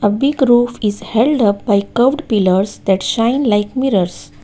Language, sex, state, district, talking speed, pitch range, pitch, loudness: English, female, Gujarat, Valsad, 160 wpm, 200-250 Hz, 220 Hz, -15 LUFS